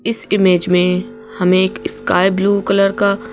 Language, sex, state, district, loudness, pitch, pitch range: Hindi, female, Madhya Pradesh, Bhopal, -15 LUFS, 195 Hz, 185-205 Hz